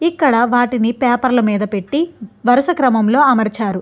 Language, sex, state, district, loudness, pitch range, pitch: Telugu, female, Andhra Pradesh, Chittoor, -15 LUFS, 220-260 Hz, 245 Hz